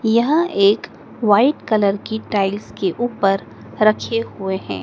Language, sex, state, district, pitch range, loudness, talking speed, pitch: Hindi, male, Madhya Pradesh, Dhar, 195-230 Hz, -18 LUFS, 135 wpm, 210 Hz